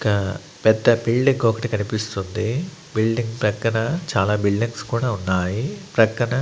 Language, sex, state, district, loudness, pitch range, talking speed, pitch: Telugu, male, Andhra Pradesh, Annamaya, -21 LUFS, 105-120 Hz, 110 wpm, 115 Hz